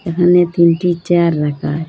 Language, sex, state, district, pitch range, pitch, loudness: Bengali, female, Assam, Hailakandi, 165-175 Hz, 170 Hz, -14 LUFS